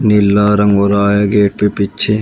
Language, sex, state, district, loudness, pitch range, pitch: Hindi, male, Uttar Pradesh, Shamli, -12 LUFS, 100-105 Hz, 105 Hz